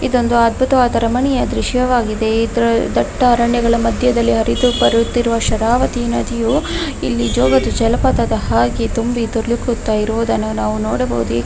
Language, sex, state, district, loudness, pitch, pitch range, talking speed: Kannada, female, Karnataka, Dharwad, -16 LUFS, 230 Hz, 215-240 Hz, 115 wpm